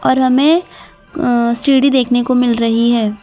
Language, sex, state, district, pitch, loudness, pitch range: Hindi, female, Gujarat, Valsad, 245 Hz, -13 LUFS, 235-270 Hz